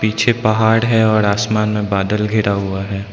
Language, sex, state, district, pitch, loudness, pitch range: Hindi, male, Arunachal Pradesh, Lower Dibang Valley, 105 Hz, -16 LUFS, 100-110 Hz